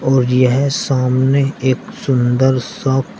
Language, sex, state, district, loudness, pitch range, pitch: Hindi, male, Uttar Pradesh, Shamli, -15 LUFS, 130-135 Hz, 130 Hz